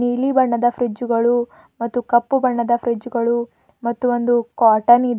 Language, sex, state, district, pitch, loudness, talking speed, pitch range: Kannada, female, Karnataka, Bidar, 240 Hz, -18 LUFS, 150 wpm, 235-245 Hz